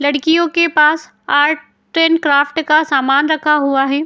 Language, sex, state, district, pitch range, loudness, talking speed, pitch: Hindi, female, Uttar Pradesh, Jyotiba Phule Nagar, 285-320 Hz, -14 LUFS, 160 wpm, 300 Hz